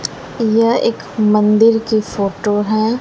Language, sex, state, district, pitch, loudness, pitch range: Hindi, female, Bihar, West Champaran, 215 Hz, -15 LUFS, 210-225 Hz